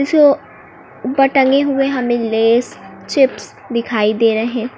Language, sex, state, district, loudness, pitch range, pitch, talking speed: Hindi, female, Uttar Pradesh, Lucknow, -15 LUFS, 230-275 Hz, 250 Hz, 115 wpm